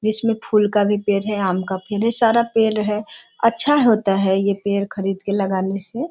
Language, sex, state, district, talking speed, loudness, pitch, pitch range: Hindi, female, Bihar, Sitamarhi, 205 wpm, -19 LUFS, 210 Hz, 195-225 Hz